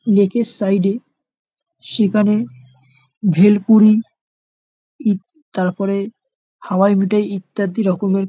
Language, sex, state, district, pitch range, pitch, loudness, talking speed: Bengali, male, West Bengal, North 24 Parganas, 195-215 Hz, 200 Hz, -16 LUFS, 95 wpm